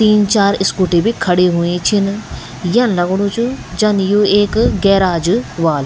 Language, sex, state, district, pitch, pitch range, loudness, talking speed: Garhwali, female, Uttarakhand, Tehri Garhwal, 195 Hz, 180-210 Hz, -14 LUFS, 155 wpm